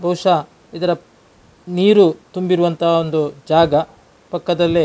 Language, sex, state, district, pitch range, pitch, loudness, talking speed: Kannada, male, Karnataka, Dakshina Kannada, 160-180 Hz, 170 Hz, -17 LUFS, 85 wpm